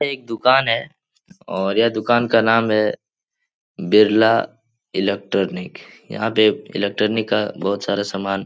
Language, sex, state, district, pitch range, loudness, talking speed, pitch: Hindi, male, Uttar Pradesh, Etah, 100-115 Hz, -18 LUFS, 140 wpm, 110 Hz